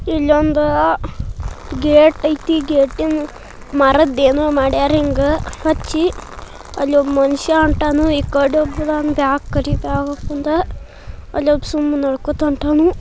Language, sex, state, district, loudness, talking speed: Kannada, male, Karnataka, Bijapur, -16 LUFS, 100 wpm